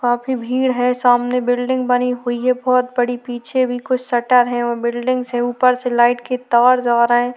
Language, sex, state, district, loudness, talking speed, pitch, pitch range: Hindi, female, Chhattisgarh, Korba, -17 LUFS, 220 wpm, 245 Hz, 240-250 Hz